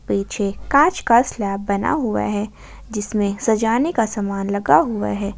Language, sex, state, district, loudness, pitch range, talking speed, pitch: Hindi, female, Jharkhand, Ranchi, -19 LUFS, 200-225 Hz, 165 wpm, 205 Hz